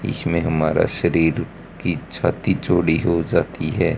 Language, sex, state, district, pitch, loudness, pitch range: Hindi, male, Haryana, Rohtak, 85 Hz, -20 LUFS, 80-85 Hz